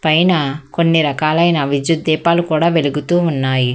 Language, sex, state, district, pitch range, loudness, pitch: Telugu, female, Telangana, Hyderabad, 145-170 Hz, -15 LUFS, 155 Hz